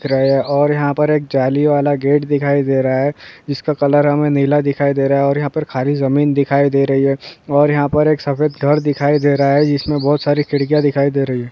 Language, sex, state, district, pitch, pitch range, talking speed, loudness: Hindi, male, West Bengal, Purulia, 145 Hz, 140-145 Hz, 250 wpm, -15 LUFS